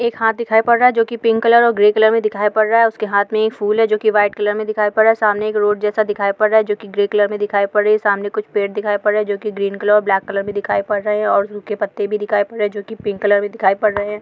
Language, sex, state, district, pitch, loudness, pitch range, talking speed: Hindi, female, Bihar, Jamui, 210 Hz, -16 LUFS, 205-220 Hz, 360 wpm